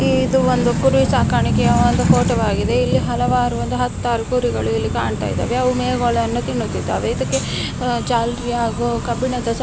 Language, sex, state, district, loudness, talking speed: Kannada, female, Karnataka, Bellary, -18 LUFS, 145 wpm